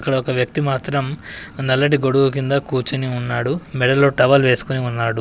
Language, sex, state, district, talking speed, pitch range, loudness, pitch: Telugu, male, Telangana, Adilabad, 150 wpm, 125-140 Hz, -18 LUFS, 135 Hz